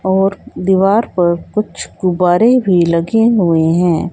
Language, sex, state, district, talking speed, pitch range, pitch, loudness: Hindi, female, Haryana, Jhajjar, 130 wpm, 175-210 Hz, 190 Hz, -13 LUFS